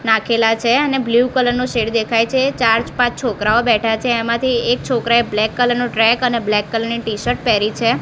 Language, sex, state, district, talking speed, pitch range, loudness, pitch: Gujarati, female, Gujarat, Gandhinagar, 210 wpm, 225-245 Hz, -16 LUFS, 235 Hz